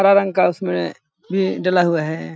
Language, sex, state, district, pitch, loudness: Hindi, male, Chhattisgarh, Balrampur, 175 Hz, -19 LUFS